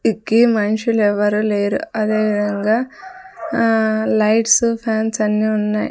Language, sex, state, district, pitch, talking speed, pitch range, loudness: Telugu, female, Andhra Pradesh, Sri Satya Sai, 220 Hz, 100 wpm, 210-230 Hz, -17 LUFS